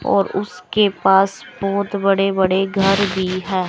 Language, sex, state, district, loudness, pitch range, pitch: Hindi, male, Chandigarh, Chandigarh, -18 LUFS, 190-195 Hz, 195 Hz